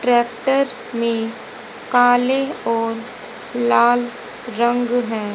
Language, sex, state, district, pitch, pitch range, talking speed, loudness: Hindi, female, Haryana, Charkhi Dadri, 240 Hz, 230-245 Hz, 80 wpm, -19 LUFS